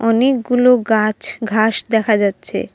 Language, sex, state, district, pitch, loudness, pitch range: Bengali, female, Assam, Kamrup Metropolitan, 225 Hz, -16 LUFS, 215-245 Hz